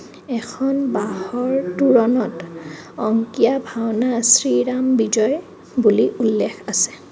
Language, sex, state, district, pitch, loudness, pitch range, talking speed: Assamese, female, Assam, Kamrup Metropolitan, 230 Hz, -18 LUFS, 215-255 Hz, 85 wpm